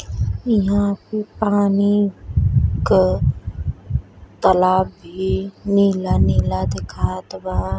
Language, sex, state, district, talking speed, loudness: Bhojpuri, female, Uttar Pradesh, Deoria, 75 wpm, -19 LUFS